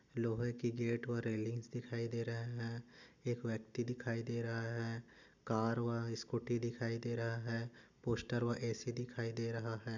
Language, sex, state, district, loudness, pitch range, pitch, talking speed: Hindi, male, Goa, North and South Goa, -41 LUFS, 115-120 Hz, 115 Hz, 180 wpm